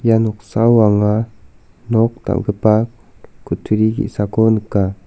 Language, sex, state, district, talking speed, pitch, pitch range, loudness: Garo, male, Meghalaya, South Garo Hills, 95 wpm, 110 Hz, 105-115 Hz, -16 LUFS